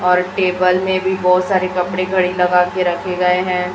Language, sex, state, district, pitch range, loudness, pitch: Hindi, female, Chhattisgarh, Raipur, 180-185 Hz, -16 LUFS, 180 Hz